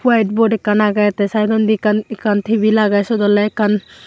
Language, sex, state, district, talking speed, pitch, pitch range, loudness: Chakma, female, Tripura, Unakoti, 205 wpm, 215 Hz, 205-220 Hz, -15 LUFS